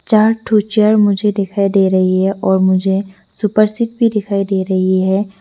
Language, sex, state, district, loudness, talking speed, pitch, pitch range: Hindi, female, Arunachal Pradesh, Lower Dibang Valley, -14 LUFS, 175 wpm, 200 Hz, 190-215 Hz